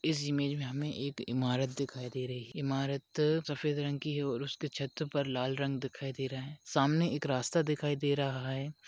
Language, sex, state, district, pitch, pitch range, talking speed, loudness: Hindi, male, Maharashtra, Chandrapur, 140 Hz, 135-145 Hz, 215 wpm, -34 LUFS